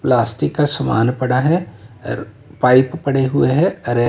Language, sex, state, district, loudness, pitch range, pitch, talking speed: Hindi, male, Uttar Pradesh, Lalitpur, -17 LUFS, 120-145 Hz, 125 Hz, 160 wpm